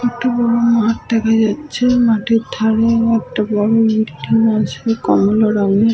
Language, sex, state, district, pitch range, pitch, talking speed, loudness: Bengali, female, West Bengal, Malda, 220-235 Hz, 225 Hz, 130 wpm, -15 LUFS